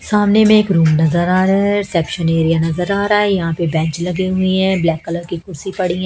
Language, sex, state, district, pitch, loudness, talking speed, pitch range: Hindi, female, Haryana, Jhajjar, 180 Hz, -15 LUFS, 245 wpm, 165-195 Hz